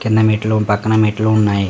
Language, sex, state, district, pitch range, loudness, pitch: Telugu, male, Telangana, Karimnagar, 105-110 Hz, -15 LUFS, 110 Hz